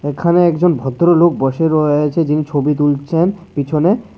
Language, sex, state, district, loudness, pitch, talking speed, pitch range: Bengali, male, Tripura, West Tripura, -14 LUFS, 155 Hz, 145 wpm, 145-175 Hz